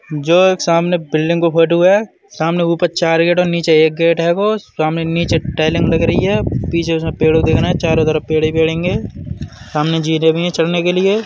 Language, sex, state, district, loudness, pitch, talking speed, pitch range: Bundeli, male, Uttar Pradesh, Budaun, -14 LUFS, 165 Hz, 225 wpm, 160-175 Hz